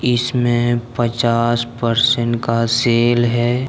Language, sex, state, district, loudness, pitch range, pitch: Hindi, male, Jharkhand, Deoghar, -16 LUFS, 115-120 Hz, 120 Hz